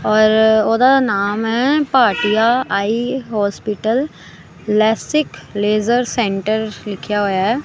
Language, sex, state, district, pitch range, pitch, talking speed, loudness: Punjabi, female, Punjab, Kapurthala, 210-245 Hz, 220 Hz, 100 wpm, -16 LUFS